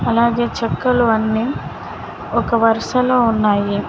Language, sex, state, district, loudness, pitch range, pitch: Telugu, female, Telangana, Mahabubabad, -17 LUFS, 220-240 Hz, 230 Hz